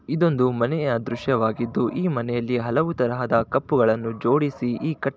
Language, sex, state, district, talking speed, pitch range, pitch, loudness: Kannada, male, Karnataka, Shimoga, 140 wpm, 120-145 Hz, 125 Hz, -23 LUFS